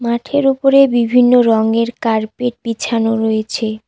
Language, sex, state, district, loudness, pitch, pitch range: Bengali, female, West Bengal, Cooch Behar, -14 LUFS, 230 Hz, 225-245 Hz